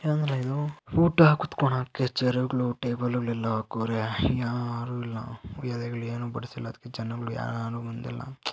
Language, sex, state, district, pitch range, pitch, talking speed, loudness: Kannada, male, Karnataka, Mysore, 115-130 Hz, 120 Hz, 120 wpm, -28 LUFS